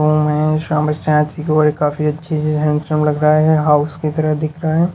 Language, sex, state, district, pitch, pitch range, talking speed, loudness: Hindi, male, Haryana, Charkhi Dadri, 150 Hz, 150-155 Hz, 160 wpm, -16 LUFS